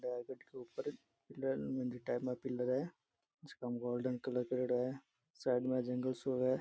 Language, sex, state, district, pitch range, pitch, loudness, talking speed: Rajasthani, male, Rajasthan, Churu, 125-135 Hz, 130 Hz, -40 LUFS, 170 wpm